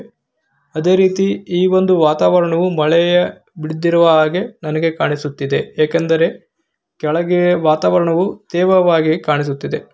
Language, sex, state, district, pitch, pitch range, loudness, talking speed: Kannada, male, Karnataka, Gulbarga, 165 Hz, 155-180 Hz, -15 LUFS, 85 wpm